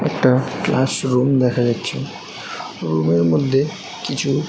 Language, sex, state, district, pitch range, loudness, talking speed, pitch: Bengali, male, West Bengal, Jhargram, 120-135 Hz, -19 LUFS, 120 wpm, 130 Hz